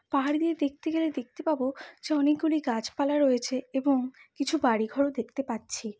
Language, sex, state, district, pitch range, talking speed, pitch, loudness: Bengali, female, West Bengal, Jhargram, 255-310 Hz, 150 wpm, 280 Hz, -28 LUFS